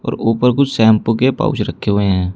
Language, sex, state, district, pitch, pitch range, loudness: Hindi, male, Uttar Pradesh, Shamli, 115 Hz, 100-130 Hz, -15 LUFS